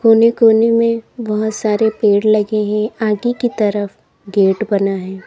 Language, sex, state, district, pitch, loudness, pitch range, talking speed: Hindi, female, Uttar Pradesh, Lalitpur, 215 Hz, -15 LUFS, 205-230 Hz, 160 wpm